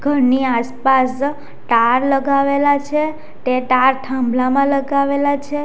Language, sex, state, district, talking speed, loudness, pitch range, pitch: Gujarati, female, Gujarat, Valsad, 105 wpm, -16 LUFS, 255-285 Hz, 275 Hz